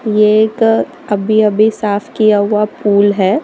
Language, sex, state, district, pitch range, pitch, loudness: Hindi, female, Gujarat, Valsad, 205-220 Hz, 210 Hz, -12 LUFS